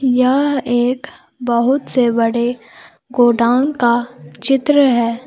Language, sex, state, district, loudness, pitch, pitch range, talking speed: Hindi, female, Jharkhand, Palamu, -15 LUFS, 245 Hz, 235-270 Hz, 100 wpm